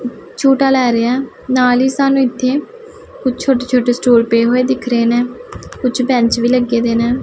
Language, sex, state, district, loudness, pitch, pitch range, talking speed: Punjabi, female, Punjab, Pathankot, -14 LUFS, 250 Hz, 240-265 Hz, 180 wpm